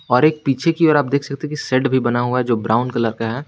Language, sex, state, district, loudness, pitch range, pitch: Hindi, male, Jharkhand, Garhwa, -18 LUFS, 120-150 Hz, 130 Hz